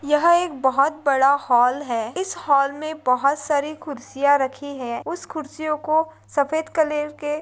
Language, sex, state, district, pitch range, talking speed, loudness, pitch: Hindi, female, Maharashtra, Dhule, 275-315 Hz, 170 wpm, -21 LUFS, 290 Hz